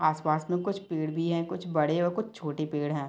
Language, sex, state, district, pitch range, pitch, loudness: Hindi, female, Chhattisgarh, Bilaspur, 155-180 Hz, 160 Hz, -30 LUFS